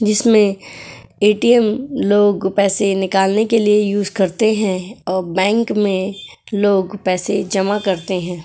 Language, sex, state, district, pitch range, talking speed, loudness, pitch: Hindi, female, Uttar Pradesh, Etah, 190-215 Hz, 130 wpm, -16 LUFS, 200 Hz